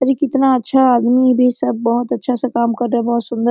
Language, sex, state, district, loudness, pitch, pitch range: Hindi, female, Jharkhand, Sahebganj, -15 LUFS, 245 Hz, 235-260 Hz